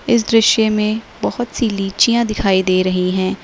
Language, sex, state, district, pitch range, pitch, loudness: Hindi, female, Uttar Pradesh, Lalitpur, 190-230 Hz, 215 Hz, -16 LUFS